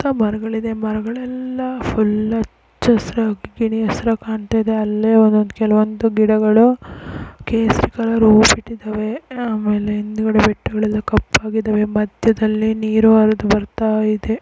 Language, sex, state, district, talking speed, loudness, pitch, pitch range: Kannada, female, Karnataka, Chamarajanagar, 110 wpm, -17 LUFS, 220 Hz, 215-225 Hz